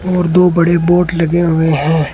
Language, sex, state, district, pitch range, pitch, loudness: Hindi, male, Rajasthan, Bikaner, 160-175 Hz, 170 Hz, -12 LUFS